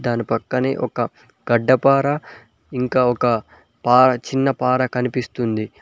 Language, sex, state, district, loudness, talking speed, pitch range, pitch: Telugu, male, Telangana, Mahabubabad, -19 LUFS, 95 wpm, 120-130 Hz, 125 Hz